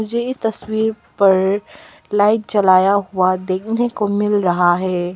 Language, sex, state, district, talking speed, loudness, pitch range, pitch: Hindi, female, Arunachal Pradesh, Papum Pare, 140 wpm, -17 LUFS, 185-220 Hz, 205 Hz